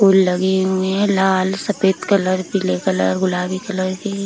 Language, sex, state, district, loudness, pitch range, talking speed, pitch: Hindi, female, Bihar, Kishanganj, -18 LUFS, 185-195 Hz, 170 wpm, 190 Hz